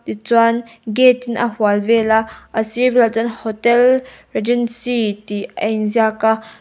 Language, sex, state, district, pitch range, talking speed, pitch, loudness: Mizo, female, Mizoram, Aizawl, 220-240 Hz, 170 wpm, 230 Hz, -17 LUFS